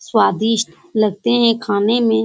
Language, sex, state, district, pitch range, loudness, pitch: Hindi, female, Bihar, Saran, 210-235 Hz, -16 LUFS, 225 Hz